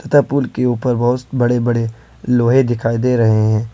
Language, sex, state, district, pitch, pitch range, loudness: Hindi, male, Jharkhand, Ranchi, 120 Hz, 115-125 Hz, -16 LUFS